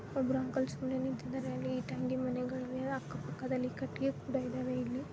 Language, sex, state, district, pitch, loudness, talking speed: Kannada, female, Karnataka, Bijapur, 255 Hz, -37 LUFS, 140 wpm